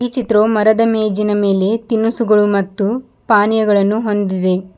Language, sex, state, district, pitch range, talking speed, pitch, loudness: Kannada, female, Karnataka, Bidar, 200-225 Hz, 115 wpm, 210 Hz, -15 LUFS